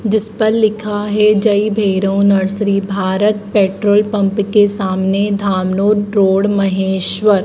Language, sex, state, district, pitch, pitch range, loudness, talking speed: Hindi, female, Madhya Pradesh, Dhar, 205 Hz, 195-210 Hz, -14 LUFS, 120 wpm